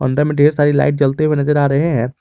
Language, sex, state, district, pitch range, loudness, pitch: Hindi, male, Jharkhand, Garhwa, 140-150 Hz, -15 LUFS, 145 Hz